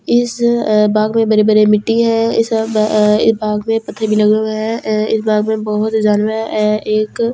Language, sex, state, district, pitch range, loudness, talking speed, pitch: Hindi, female, Delhi, New Delhi, 215-225 Hz, -14 LUFS, 235 wpm, 215 Hz